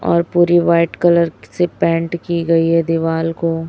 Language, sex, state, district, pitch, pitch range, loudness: Hindi, female, Chhattisgarh, Raipur, 170 Hz, 165-170 Hz, -16 LUFS